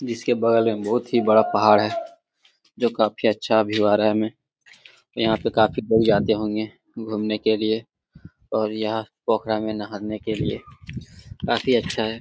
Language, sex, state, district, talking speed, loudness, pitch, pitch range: Hindi, male, Jharkhand, Jamtara, 175 wpm, -22 LUFS, 110 Hz, 110-115 Hz